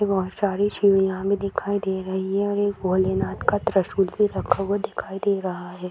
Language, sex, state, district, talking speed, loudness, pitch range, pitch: Hindi, female, Bihar, Jamui, 205 wpm, -23 LUFS, 190-205 Hz, 195 Hz